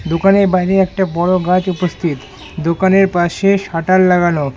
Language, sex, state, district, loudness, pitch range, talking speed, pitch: Bengali, male, West Bengal, Alipurduar, -14 LUFS, 170-190 Hz, 130 wpm, 180 Hz